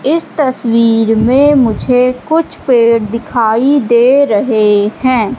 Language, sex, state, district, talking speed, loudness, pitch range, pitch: Hindi, female, Madhya Pradesh, Katni, 110 wpm, -11 LUFS, 225-270 Hz, 245 Hz